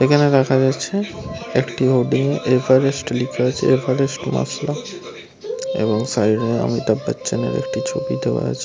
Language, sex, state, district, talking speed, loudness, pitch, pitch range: Bengali, male, West Bengal, Paschim Medinipur, 180 wpm, -19 LUFS, 130 Hz, 125-140 Hz